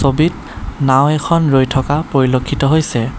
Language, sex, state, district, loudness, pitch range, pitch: Assamese, male, Assam, Kamrup Metropolitan, -14 LUFS, 130-155 Hz, 140 Hz